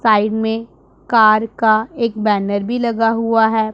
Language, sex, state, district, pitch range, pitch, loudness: Hindi, female, Punjab, Pathankot, 215-230 Hz, 220 Hz, -16 LUFS